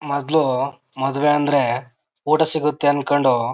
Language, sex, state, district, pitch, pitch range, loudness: Kannada, male, Karnataka, Chamarajanagar, 145 Hz, 135-150 Hz, -19 LUFS